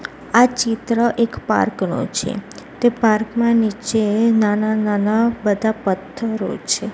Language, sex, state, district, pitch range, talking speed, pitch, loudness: Gujarati, female, Gujarat, Gandhinagar, 215-235 Hz, 130 wpm, 220 Hz, -18 LUFS